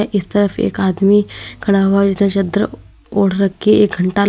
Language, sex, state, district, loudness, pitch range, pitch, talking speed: Hindi, female, Uttar Pradesh, Lalitpur, -15 LUFS, 195-205 Hz, 200 Hz, 165 wpm